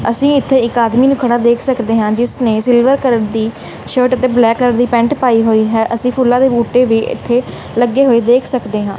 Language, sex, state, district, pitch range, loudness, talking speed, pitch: Punjabi, female, Punjab, Kapurthala, 230-255 Hz, -12 LUFS, 220 wpm, 240 Hz